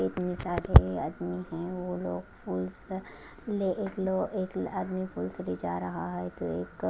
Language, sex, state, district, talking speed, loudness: Hindi, female, Chandigarh, Chandigarh, 155 wpm, -31 LUFS